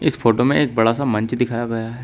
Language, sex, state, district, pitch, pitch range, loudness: Hindi, male, Uttar Pradesh, Shamli, 120 Hz, 115-125 Hz, -19 LUFS